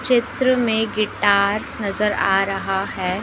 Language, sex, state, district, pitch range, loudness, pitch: Hindi, female, Madhya Pradesh, Dhar, 195-225 Hz, -19 LUFS, 205 Hz